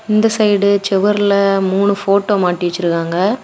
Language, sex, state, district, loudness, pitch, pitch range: Tamil, female, Tamil Nadu, Kanyakumari, -14 LUFS, 200 Hz, 190-205 Hz